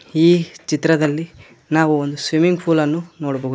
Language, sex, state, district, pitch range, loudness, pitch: Kannada, male, Karnataka, Koppal, 145-165 Hz, -18 LUFS, 155 Hz